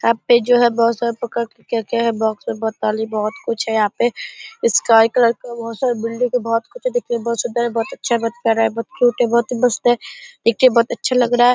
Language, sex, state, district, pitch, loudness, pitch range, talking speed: Hindi, female, Bihar, Purnia, 235 Hz, -18 LUFS, 230-245 Hz, 265 wpm